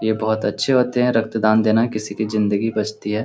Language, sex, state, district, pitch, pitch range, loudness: Hindi, male, Bihar, Lakhisarai, 110 Hz, 110-115 Hz, -19 LUFS